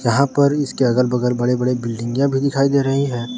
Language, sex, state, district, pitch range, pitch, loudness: Hindi, male, Jharkhand, Garhwa, 125-140 Hz, 130 Hz, -18 LUFS